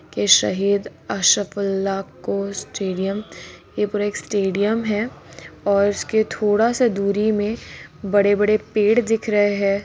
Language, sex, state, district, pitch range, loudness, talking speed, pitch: Hindi, female, Bihar, Kishanganj, 200-215 Hz, -20 LUFS, 130 wpm, 205 Hz